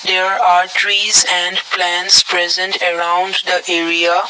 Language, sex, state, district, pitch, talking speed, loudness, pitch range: English, male, Assam, Kamrup Metropolitan, 180 Hz, 125 wpm, -13 LUFS, 175-185 Hz